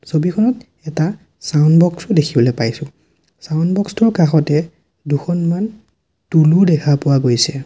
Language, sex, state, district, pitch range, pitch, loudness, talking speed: Assamese, male, Assam, Sonitpur, 145-175 Hz, 160 Hz, -15 LUFS, 135 wpm